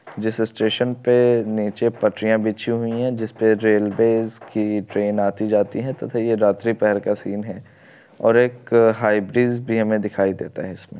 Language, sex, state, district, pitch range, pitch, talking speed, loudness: Hindi, male, Bihar, Darbhanga, 105-115 Hz, 110 Hz, 175 wpm, -20 LUFS